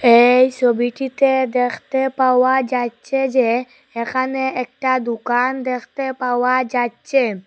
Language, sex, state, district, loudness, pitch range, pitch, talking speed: Bengali, female, Assam, Hailakandi, -18 LUFS, 245-265 Hz, 255 Hz, 95 wpm